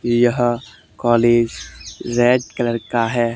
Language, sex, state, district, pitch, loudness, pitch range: Hindi, male, Haryana, Charkhi Dadri, 120 Hz, -18 LUFS, 115-120 Hz